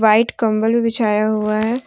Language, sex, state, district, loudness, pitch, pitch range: Hindi, female, Jharkhand, Deoghar, -17 LUFS, 220 Hz, 215-230 Hz